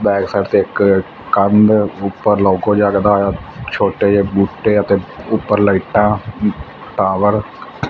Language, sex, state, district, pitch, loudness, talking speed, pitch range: Punjabi, male, Punjab, Fazilka, 100 Hz, -15 LUFS, 130 wpm, 100-105 Hz